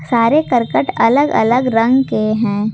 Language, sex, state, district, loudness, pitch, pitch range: Hindi, female, Jharkhand, Ranchi, -14 LUFS, 230 Hz, 220-260 Hz